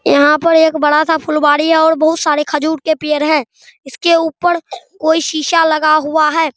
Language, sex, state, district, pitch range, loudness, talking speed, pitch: Hindi, male, Bihar, Araria, 300-320 Hz, -13 LUFS, 190 wpm, 310 Hz